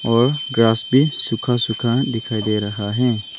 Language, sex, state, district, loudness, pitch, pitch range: Hindi, male, Arunachal Pradesh, Longding, -18 LUFS, 115 Hz, 110-125 Hz